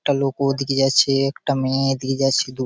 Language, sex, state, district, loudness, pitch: Bengali, male, West Bengal, Malda, -19 LUFS, 135 Hz